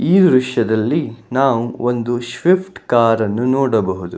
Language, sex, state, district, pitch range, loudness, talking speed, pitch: Kannada, male, Karnataka, Bangalore, 115-135 Hz, -16 LUFS, 100 wpm, 120 Hz